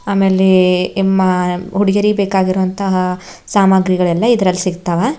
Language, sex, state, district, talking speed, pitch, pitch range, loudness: Kannada, female, Karnataka, Bidar, 80 wpm, 190 Hz, 180-195 Hz, -14 LUFS